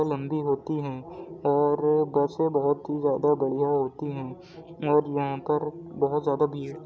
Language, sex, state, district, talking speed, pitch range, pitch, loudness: Hindi, male, Uttar Pradesh, Muzaffarnagar, 160 wpm, 140-155 Hz, 145 Hz, -26 LUFS